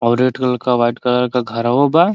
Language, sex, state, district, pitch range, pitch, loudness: Bhojpuri, male, Uttar Pradesh, Ghazipur, 120-130 Hz, 125 Hz, -16 LUFS